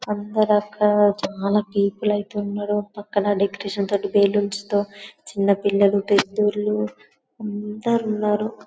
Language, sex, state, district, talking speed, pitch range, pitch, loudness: Telugu, female, Telangana, Karimnagar, 110 wpm, 200-210 Hz, 205 Hz, -21 LUFS